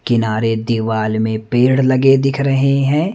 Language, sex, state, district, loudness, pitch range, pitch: Hindi, male, Madhya Pradesh, Umaria, -15 LUFS, 110-135 Hz, 125 Hz